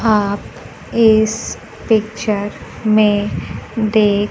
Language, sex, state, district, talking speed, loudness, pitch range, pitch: Hindi, female, Bihar, Kaimur, 70 wpm, -16 LUFS, 205-220 Hz, 215 Hz